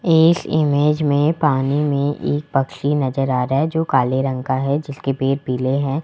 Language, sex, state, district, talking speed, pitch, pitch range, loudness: Hindi, male, Rajasthan, Jaipur, 200 wpm, 140 Hz, 135-150 Hz, -19 LUFS